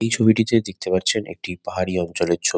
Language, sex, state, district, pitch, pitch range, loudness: Bengali, male, West Bengal, Kolkata, 95 Hz, 90-110 Hz, -21 LUFS